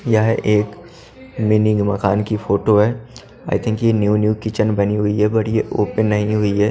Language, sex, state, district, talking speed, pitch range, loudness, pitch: Hindi, male, Haryana, Charkhi Dadri, 195 wpm, 105-110 Hz, -17 LUFS, 105 Hz